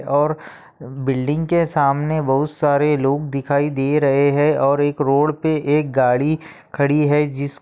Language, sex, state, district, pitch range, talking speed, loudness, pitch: Bhojpuri, male, Bihar, Saran, 140-150 Hz, 165 wpm, -18 LUFS, 145 Hz